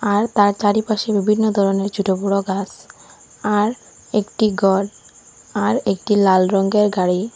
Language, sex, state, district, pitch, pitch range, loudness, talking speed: Bengali, female, Assam, Hailakandi, 205 Hz, 195-210 Hz, -18 LUFS, 120 wpm